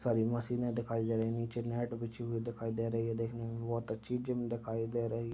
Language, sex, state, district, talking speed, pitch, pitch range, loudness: Hindi, male, Uttar Pradesh, Deoria, 260 wpm, 115 Hz, 115-120 Hz, -37 LUFS